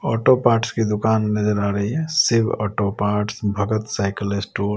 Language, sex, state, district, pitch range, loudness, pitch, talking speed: Hindi, male, Chhattisgarh, Raipur, 100-115 Hz, -20 LUFS, 105 Hz, 190 wpm